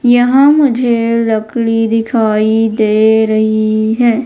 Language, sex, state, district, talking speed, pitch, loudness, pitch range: Hindi, female, Madhya Pradesh, Umaria, 100 wpm, 225 Hz, -11 LUFS, 220-240 Hz